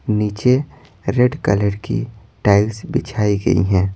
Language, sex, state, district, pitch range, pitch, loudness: Hindi, male, Bihar, Patna, 100-120 Hz, 105 Hz, -18 LUFS